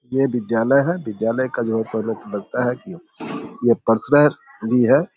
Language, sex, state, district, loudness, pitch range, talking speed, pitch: Hindi, male, Bihar, Samastipur, -20 LUFS, 115-140 Hz, 115 wpm, 120 Hz